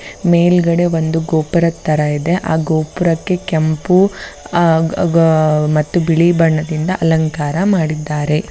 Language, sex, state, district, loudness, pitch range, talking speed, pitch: Kannada, female, Karnataka, Bellary, -14 LUFS, 155-175 Hz, 105 wpm, 165 Hz